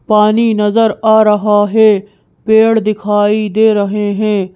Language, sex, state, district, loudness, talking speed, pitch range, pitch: Hindi, female, Madhya Pradesh, Bhopal, -11 LUFS, 130 wpm, 205-220 Hz, 210 Hz